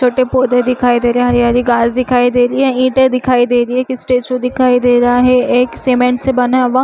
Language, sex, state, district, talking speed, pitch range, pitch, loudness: Chhattisgarhi, female, Chhattisgarh, Rajnandgaon, 255 wpm, 245-255 Hz, 250 Hz, -12 LUFS